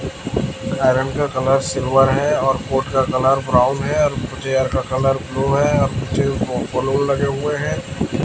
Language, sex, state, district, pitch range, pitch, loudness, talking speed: Hindi, male, Chhattisgarh, Raipur, 130-140 Hz, 135 Hz, -18 LUFS, 180 wpm